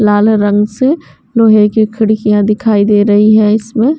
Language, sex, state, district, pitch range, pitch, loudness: Hindi, female, Bihar, West Champaran, 210-220 Hz, 215 Hz, -10 LUFS